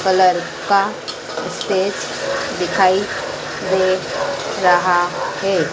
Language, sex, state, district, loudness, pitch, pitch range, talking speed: Hindi, female, Madhya Pradesh, Dhar, -18 LUFS, 185 Hz, 180-195 Hz, 75 wpm